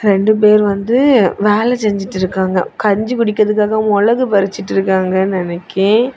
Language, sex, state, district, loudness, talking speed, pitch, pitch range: Tamil, female, Tamil Nadu, Kanyakumari, -14 LUFS, 115 wpm, 210 Hz, 195-215 Hz